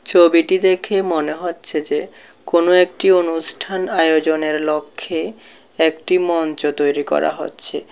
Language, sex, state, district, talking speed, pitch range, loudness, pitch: Bengali, male, Tripura, South Tripura, 115 wpm, 155-180 Hz, -17 LUFS, 165 Hz